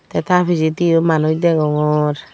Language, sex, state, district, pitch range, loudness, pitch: Chakma, female, Tripura, Dhalai, 150-170 Hz, -16 LUFS, 160 Hz